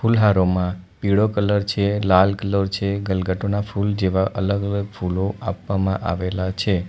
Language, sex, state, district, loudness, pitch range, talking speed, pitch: Gujarati, male, Gujarat, Valsad, -21 LUFS, 95-100 Hz, 140 wpm, 100 Hz